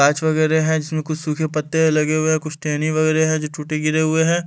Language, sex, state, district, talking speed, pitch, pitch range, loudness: Hindi, male, Delhi, New Delhi, 255 wpm, 155 Hz, 155-160 Hz, -19 LUFS